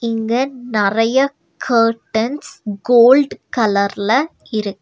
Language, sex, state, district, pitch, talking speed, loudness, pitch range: Tamil, female, Tamil Nadu, Nilgiris, 230 Hz, 75 wpm, -16 LUFS, 215-255 Hz